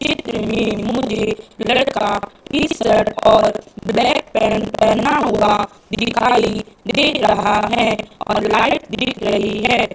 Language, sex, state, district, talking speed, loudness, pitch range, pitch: Hindi, female, Madhya Pradesh, Katni, 120 wpm, -17 LUFS, 215-240 Hz, 220 Hz